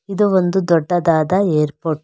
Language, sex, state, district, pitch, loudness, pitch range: Kannada, female, Karnataka, Bangalore, 175 Hz, -16 LUFS, 160-190 Hz